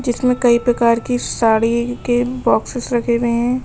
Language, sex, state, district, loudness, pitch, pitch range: Hindi, female, Uttar Pradesh, Lalitpur, -17 LUFS, 240 Hz, 235-245 Hz